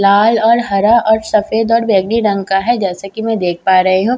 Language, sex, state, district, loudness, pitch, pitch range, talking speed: Hindi, female, Bihar, Katihar, -13 LUFS, 215 Hz, 195-225 Hz, 245 wpm